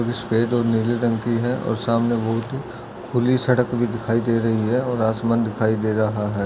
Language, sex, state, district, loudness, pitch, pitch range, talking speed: Hindi, male, Maharashtra, Nagpur, -21 LUFS, 115 Hz, 115-120 Hz, 215 wpm